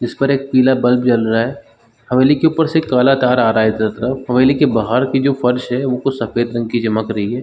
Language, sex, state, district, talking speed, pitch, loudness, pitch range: Hindi, male, Chhattisgarh, Balrampur, 250 wpm, 125 Hz, -15 LUFS, 115-135 Hz